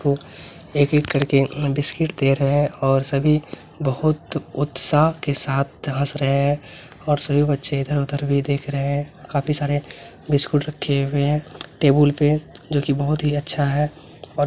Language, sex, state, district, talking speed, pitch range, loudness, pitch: Hindi, male, Bihar, Lakhisarai, 165 wpm, 140-150 Hz, -20 LUFS, 145 Hz